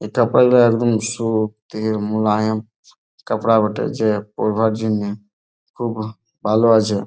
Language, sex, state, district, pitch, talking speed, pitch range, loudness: Bengali, male, West Bengal, Jalpaiguri, 110 Hz, 110 wpm, 105-115 Hz, -18 LUFS